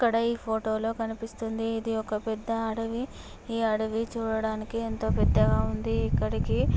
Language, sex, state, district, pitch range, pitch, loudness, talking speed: Telugu, female, Andhra Pradesh, Chittoor, 220-230 Hz, 225 Hz, -29 LUFS, 125 wpm